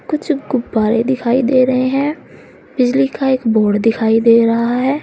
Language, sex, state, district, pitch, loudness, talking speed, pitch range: Hindi, female, Uttar Pradesh, Saharanpur, 255 Hz, -14 LUFS, 165 wpm, 230-265 Hz